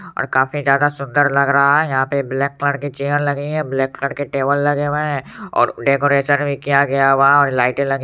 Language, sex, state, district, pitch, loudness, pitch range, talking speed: Hindi, male, Bihar, Supaul, 140 Hz, -17 LUFS, 135-145 Hz, 240 wpm